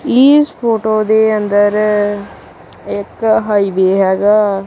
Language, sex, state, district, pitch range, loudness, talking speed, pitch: Punjabi, male, Punjab, Kapurthala, 205-220 Hz, -12 LUFS, 90 wpm, 210 Hz